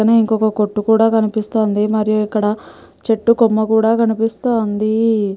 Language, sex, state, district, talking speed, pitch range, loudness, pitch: Telugu, female, Telangana, Nalgonda, 110 wpm, 215-225 Hz, -16 LUFS, 220 Hz